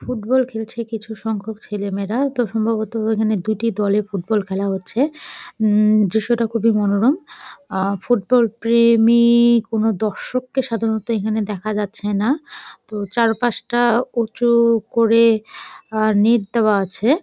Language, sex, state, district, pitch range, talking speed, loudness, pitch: Bengali, female, West Bengal, Jalpaiguri, 215-235 Hz, 130 wpm, -18 LUFS, 225 Hz